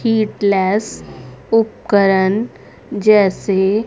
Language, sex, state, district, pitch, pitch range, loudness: Hindi, female, Haryana, Rohtak, 205 Hz, 195-220 Hz, -15 LUFS